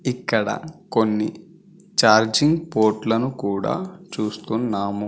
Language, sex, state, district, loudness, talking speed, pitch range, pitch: Telugu, male, Andhra Pradesh, Guntur, -21 LUFS, 70 wpm, 110-170 Hz, 120 Hz